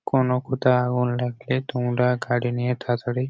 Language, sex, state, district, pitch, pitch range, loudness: Bengali, male, West Bengal, Jhargram, 125 Hz, 120-125 Hz, -23 LUFS